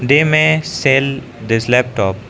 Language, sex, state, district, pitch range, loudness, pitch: English, male, Arunachal Pradesh, Lower Dibang Valley, 115-145 Hz, -14 LUFS, 130 Hz